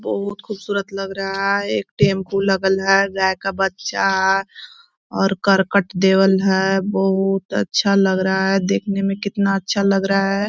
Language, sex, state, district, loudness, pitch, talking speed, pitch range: Hindi, female, Chhattisgarh, Korba, -18 LUFS, 195 Hz, 165 wpm, 190-200 Hz